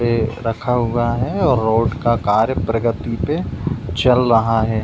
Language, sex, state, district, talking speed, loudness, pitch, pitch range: Hindi, male, Uttar Pradesh, Budaun, 160 wpm, -18 LUFS, 115 Hz, 115-120 Hz